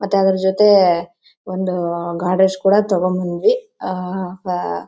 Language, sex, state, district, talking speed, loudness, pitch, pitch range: Kannada, female, Karnataka, Bellary, 85 wpm, -17 LUFS, 185 Hz, 180-195 Hz